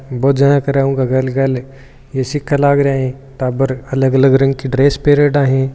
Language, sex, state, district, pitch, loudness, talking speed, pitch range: Marwari, male, Rajasthan, Churu, 135 Hz, -14 LUFS, 190 wpm, 130-140 Hz